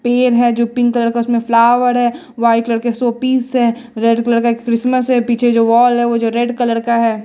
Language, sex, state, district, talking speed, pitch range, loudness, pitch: Hindi, female, Bihar, West Champaran, 250 wpm, 230-245 Hz, -14 LUFS, 235 Hz